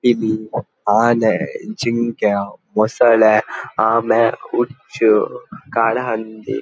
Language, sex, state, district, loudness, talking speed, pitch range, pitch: Tulu, male, Karnataka, Dakshina Kannada, -17 LUFS, 65 wpm, 110-120 Hz, 110 Hz